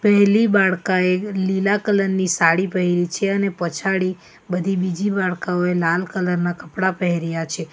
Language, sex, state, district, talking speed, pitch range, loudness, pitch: Gujarati, female, Gujarat, Valsad, 155 wpm, 175-195 Hz, -20 LUFS, 185 Hz